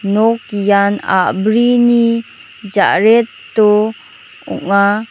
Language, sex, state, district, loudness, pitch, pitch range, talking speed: Garo, female, Meghalaya, North Garo Hills, -13 LUFS, 215 Hz, 200-230 Hz, 60 wpm